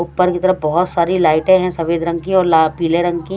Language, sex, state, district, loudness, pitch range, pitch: Hindi, female, Haryana, Rohtak, -15 LUFS, 165-185 Hz, 175 Hz